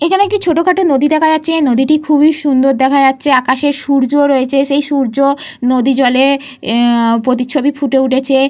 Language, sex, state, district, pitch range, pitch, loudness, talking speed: Bengali, female, Jharkhand, Jamtara, 265-295 Hz, 275 Hz, -12 LUFS, 150 wpm